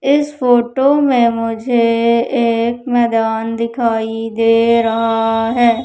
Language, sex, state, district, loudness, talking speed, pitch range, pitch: Hindi, female, Madhya Pradesh, Umaria, -14 LUFS, 105 wpm, 225-240 Hz, 230 Hz